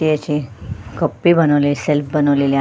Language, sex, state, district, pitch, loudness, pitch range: Marathi, female, Maharashtra, Sindhudurg, 145 Hz, -16 LUFS, 140-150 Hz